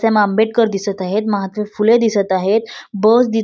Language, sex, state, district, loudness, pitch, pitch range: Marathi, female, Maharashtra, Solapur, -16 LUFS, 210 Hz, 200-225 Hz